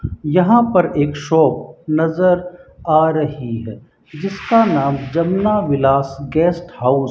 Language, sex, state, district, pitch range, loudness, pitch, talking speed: Hindi, male, Rajasthan, Bikaner, 140-180 Hz, -16 LUFS, 160 Hz, 125 wpm